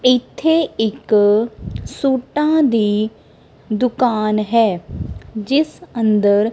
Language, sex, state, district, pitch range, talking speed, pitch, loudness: Punjabi, female, Punjab, Kapurthala, 215-265 Hz, 75 wpm, 230 Hz, -17 LUFS